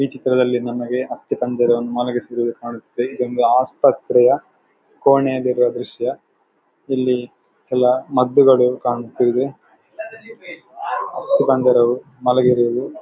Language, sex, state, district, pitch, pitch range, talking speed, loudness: Kannada, male, Karnataka, Dakshina Kannada, 125 Hz, 120-130 Hz, 80 wpm, -18 LUFS